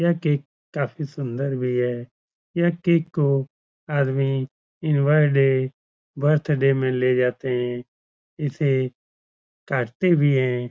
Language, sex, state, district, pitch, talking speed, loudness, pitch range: Hindi, male, Bihar, Supaul, 135 Hz, 105 wpm, -22 LUFS, 125-150 Hz